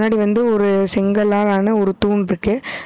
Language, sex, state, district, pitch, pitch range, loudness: Tamil, female, Tamil Nadu, Namakkal, 205 Hz, 200-215 Hz, -17 LUFS